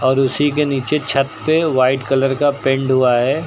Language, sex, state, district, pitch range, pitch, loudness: Hindi, male, Uttar Pradesh, Lucknow, 130-145 Hz, 135 Hz, -16 LUFS